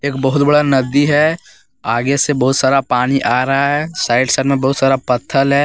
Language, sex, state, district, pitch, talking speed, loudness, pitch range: Hindi, male, Jharkhand, Deoghar, 135 Hz, 200 wpm, -14 LUFS, 130-145 Hz